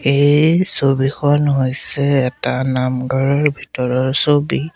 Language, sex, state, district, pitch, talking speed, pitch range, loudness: Assamese, male, Assam, Sonitpur, 140 Hz, 90 wpm, 130-145 Hz, -16 LUFS